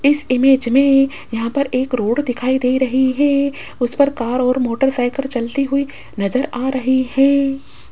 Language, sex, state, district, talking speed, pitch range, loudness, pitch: Hindi, female, Rajasthan, Jaipur, 165 wpm, 250-275 Hz, -17 LUFS, 260 Hz